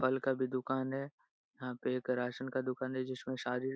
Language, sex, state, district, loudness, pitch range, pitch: Hindi, male, Bihar, Jahanabad, -37 LUFS, 125-130 Hz, 130 Hz